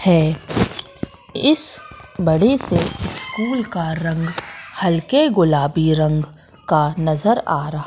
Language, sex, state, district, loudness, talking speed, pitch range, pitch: Hindi, female, Madhya Pradesh, Katni, -18 LUFS, 105 wpm, 155-205 Hz, 165 Hz